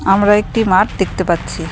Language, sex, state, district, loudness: Bengali, female, West Bengal, Cooch Behar, -14 LUFS